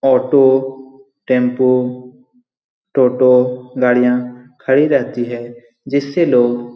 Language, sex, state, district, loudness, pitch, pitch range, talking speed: Hindi, male, Bihar, Lakhisarai, -15 LUFS, 125 Hz, 125-135 Hz, 90 wpm